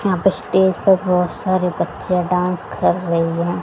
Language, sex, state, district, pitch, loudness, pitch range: Hindi, female, Haryana, Jhajjar, 180 Hz, -18 LUFS, 180-185 Hz